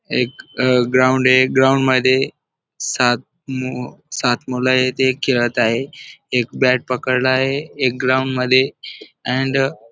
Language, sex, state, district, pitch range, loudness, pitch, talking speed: Marathi, male, Maharashtra, Dhule, 125-130 Hz, -17 LUFS, 130 Hz, 140 wpm